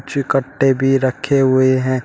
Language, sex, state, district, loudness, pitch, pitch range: Hindi, male, Uttar Pradesh, Shamli, -16 LUFS, 135 Hz, 130-135 Hz